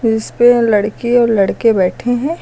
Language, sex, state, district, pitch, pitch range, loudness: Hindi, female, Uttar Pradesh, Lucknow, 230 Hz, 215-245 Hz, -13 LUFS